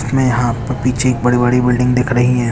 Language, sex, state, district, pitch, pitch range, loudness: Hindi, male, Bihar, Jamui, 125 Hz, 120-125 Hz, -14 LUFS